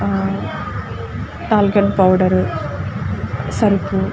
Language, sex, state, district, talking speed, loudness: Telugu, female, Andhra Pradesh, Guntur, 75 wpm, -18 LUFS